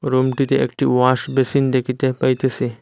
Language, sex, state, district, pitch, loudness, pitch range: Bengali, male, Assam, Hailakandi, 130 Hz, -18 LUFS, 130-135 Hz